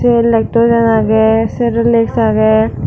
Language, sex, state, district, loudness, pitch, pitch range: Chakma, female, Tripura, Dhalai, -12 LUFS, 225 Hz, 220-235 Hz